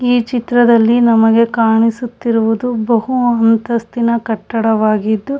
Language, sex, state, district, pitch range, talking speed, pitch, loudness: Kannada, female, Karnataka, Shimoga, 225-240 Hz, 80 wpm, 230 Hz, -13 LUFS